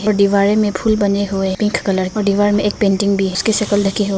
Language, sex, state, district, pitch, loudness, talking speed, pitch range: Hindi, female, Arunachal Pradesh, Papum Pare, 200 Hz, -16 LUFS, 270 wpm, 195-210 Hz